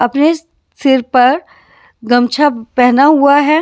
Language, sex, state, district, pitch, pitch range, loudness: Hindi, female, Bihar, West Champaran, 275 Hz, 245-295 Hz, -11 LUFS